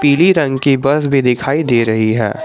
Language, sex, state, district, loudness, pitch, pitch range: Hindi, male, Jharkhand, Garhwa, -13 LUFS, 135 Hz, 120-145 Hz